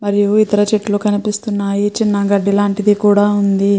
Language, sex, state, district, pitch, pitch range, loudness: Telugu, female, Andhra Pradesh, Krishna, 205 Hz, 200-210 Hz, -14 LUFS